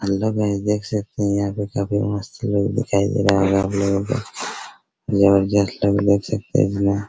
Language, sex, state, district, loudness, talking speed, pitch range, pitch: Hindi, male, Bihar, Araria, -20 LUFS, 180 wpm, 100-105 Hz, 100 Hz